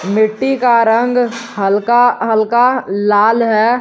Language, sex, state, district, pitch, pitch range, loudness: Hindi, male, Jharkhand, Garhwa, 230 Hz, 215-245 Hz, -13 LUFS